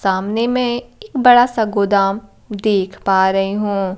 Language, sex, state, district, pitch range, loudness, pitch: Hindi, female, Bihar, Kaimur, 195-240 Hz, -16 LUFS, 205 Hz